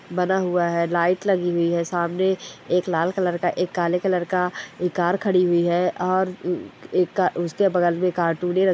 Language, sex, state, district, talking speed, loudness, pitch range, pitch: Hindi, male, Bihar, Kishanganj, 190 wpm, -22 LUFS, 175-185 Hz, 180 Hz